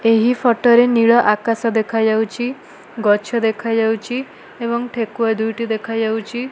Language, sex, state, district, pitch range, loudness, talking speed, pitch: Odia, female, Odisha, Malkangiri, 220-240 Hz, -17 LUFS, 100 wpm, 230 Hz